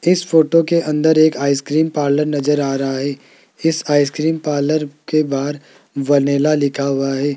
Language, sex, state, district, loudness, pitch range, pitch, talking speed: Hindi, male, Rajasthan, Jaipur, -17 LUFS, 140-155 Hz, 145 Hz, 170 wpm